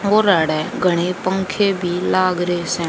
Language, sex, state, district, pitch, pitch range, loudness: Hindi, female, Haryana, Rohtak, 180 Hz, 175-190 Hz, -18 LUFS